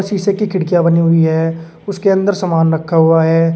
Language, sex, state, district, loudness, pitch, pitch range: Hindi, male, Uttar Pradesh, Shamli, -13 LUFS, 165 Hz, 165-195 Hz